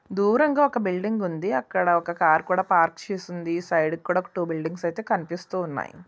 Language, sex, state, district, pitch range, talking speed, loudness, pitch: Telugu, female, Andhra Pradesh, Visakhapatnam, 170-195 Hz, 175 wpm, -24 LUFS, 180 Hz